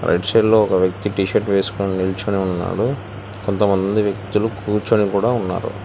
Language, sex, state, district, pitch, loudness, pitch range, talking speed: Telugu, male, Telangana, Hyderabad, 100 Hz, -19 LUFS, 95-105 Hz, 155 wpm